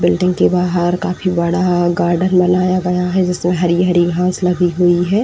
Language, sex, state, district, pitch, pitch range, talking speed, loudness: Hindi, female, Uttar Pradesh, Etah, 180 Hz, 175-180 Hz, 195 wpm, -15 LUFS